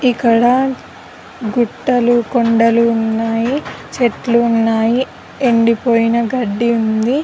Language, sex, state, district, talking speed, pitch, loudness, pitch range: Telugu, female, Telangana, Karimnagar, 85 wpm, 235 Hz, -15 LUFS, 230-245 Hz